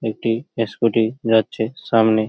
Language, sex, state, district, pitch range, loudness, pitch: Bengali, male, West Bengal, Paschim Medinipur, 110-115 Hz, -19 LUFS, 115 Hz